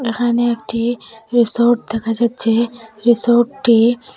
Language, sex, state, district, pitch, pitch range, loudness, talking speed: Bengali, female, Assam, Hailakandi, 235 Hz, 225-240 Hz, -16 LUFS, 85 wpm